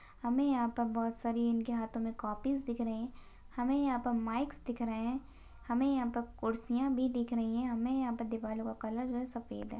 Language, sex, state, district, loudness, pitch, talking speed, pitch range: Hindi, female, Maharashtra, Solapur, -35 LUFS, 235 Hz, 215 wpm, 230-250 Hz